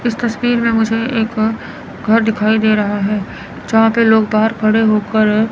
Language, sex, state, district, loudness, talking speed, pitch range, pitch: Hindi, female, Chandigarh, Chandigarh, -14 LUFS, 175 wpm, 215-225 Hz, 220 Hz